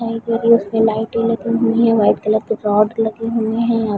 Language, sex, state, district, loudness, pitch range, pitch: Hindi, female, Chhattisgarh, Bilaspur, -16 LUFS, 220-230 Hz, 225 Hz